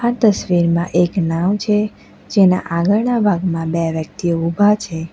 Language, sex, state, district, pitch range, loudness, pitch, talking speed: Gujarati, female, Gujarat, Valsad, 170-210 Hz, -17 LUFS, 180 Hz, 140 wpm